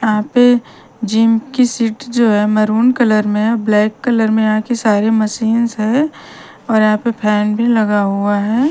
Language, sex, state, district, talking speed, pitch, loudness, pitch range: Hindi, female, Bihar, Patna, 190 wpm, 220 Hz, -14 LUFS, 215-235 Hz